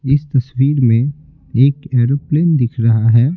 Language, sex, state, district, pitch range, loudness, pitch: Hindi, male, Bihar, Patna, 120-145 Hz, -15 LUFS, 135 Hz